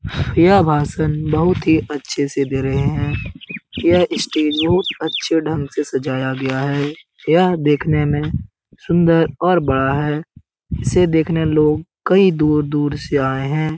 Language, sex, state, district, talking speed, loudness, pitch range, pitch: Hindi, male, Bihar, Jamui, 150 wpm, -17 LUFS, 140-160 Hz, 150 Hz